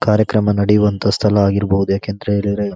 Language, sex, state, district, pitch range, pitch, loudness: Kannada, male, Karnataka, Dakshina Kannada, 100-105 Hz, 100 Hz, -16 LUFS